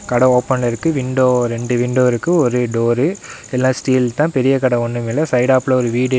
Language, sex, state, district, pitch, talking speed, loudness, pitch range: Tamil, male, Tamil Nadu, Namakkal, 125 Hz, 175 wpm, -16 LUFS, 120-130 Hz